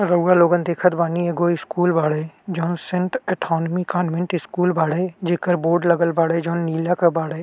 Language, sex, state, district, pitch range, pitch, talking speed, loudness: Bhojpuri, male, Uttar Pradesh, Gorakhpur, 165-180 Hz, 170 Hz, 170 wpm, -20 LUFS